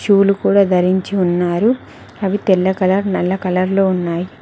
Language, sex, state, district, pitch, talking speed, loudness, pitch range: Telugu, female, Telangana, Mahabubabad, 190 Hz, 165 wpm, -16 LUFS, 180-195 Hz